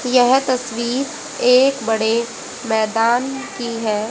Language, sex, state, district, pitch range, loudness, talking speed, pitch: Hindi, female, Haryana, Rohtak, 225-255 Hz, -18 LUFS, 100 wpm, 240 Hz